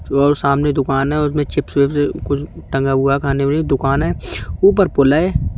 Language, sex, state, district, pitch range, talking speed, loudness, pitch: Hindi, male, Uttar Pradesh, Budaun, 135-145 Hz, 205 wpm, -16 LUFS, 140 Hz